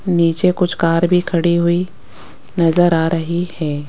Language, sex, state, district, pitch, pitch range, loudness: Hindi, female, Rajasthan, Jaipur, 170 Hz, 165-180 Hz, -16 LUFS